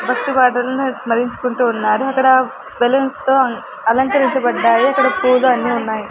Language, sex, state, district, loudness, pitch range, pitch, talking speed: Telugu, female, Andhra Pradesh, Sri Satya Sai, -15 LUFS, 235-265 Hz, 250 Hz, 120 wpm